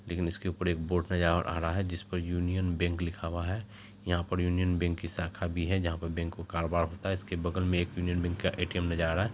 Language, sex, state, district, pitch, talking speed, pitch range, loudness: Maithili, male, Bihar, Supaul, 90 Hz, 275 wpm, 85-90 Hz, -32 LUFS